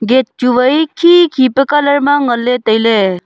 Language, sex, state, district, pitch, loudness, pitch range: Wancho, female, Arunachal Pradesh, Longding, 260 Hz, -11 LUFS, 235-290 Hz